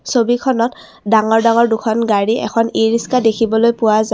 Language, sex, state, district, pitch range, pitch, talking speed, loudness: Assamese, female, Assam, Kamrup Metropolitan, 220-235 Hz, 230 Hz, 160 wpm, -15 LUFS